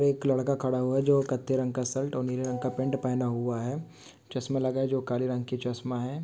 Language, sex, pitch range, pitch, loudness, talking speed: Hindi, male, 125-135 Hz, 130 Hz, -29 LUFS, 240 wpm